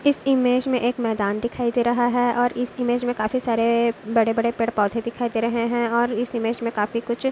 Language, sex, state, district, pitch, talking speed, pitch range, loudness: Hindi, female, Maharashtra, Dhule, 235 Hz, 240 wpm, 230-245 Hz, -22 LUFS